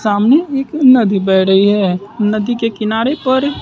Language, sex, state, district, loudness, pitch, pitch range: Hindi, male, Bihar, West Champaran, -13 LUFS, 225 Hz, 205-260 Hz